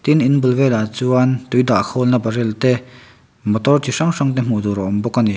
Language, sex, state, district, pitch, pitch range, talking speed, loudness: Mizo, male, Mizoram, Aizawl, 125 Hz, 115-130 Hz, 245 wpm, -17 LUFS